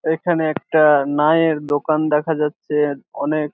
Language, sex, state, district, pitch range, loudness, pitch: Bengali, male, West Bengal, Jhargram, 150-160 Hz, -18 LUFS, 150 Hz